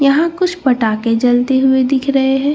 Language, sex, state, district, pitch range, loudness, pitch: Hindi, female, Bihar, Katihar, 245-280 Hz, -14 LUFS, 265 Hz